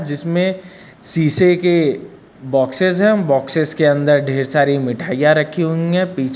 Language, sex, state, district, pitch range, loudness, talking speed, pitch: Hindi, male, Uttar Pradesh, Lucknow, 140-180 Hz, -16 LUFS, 140 wpm, 155 Hz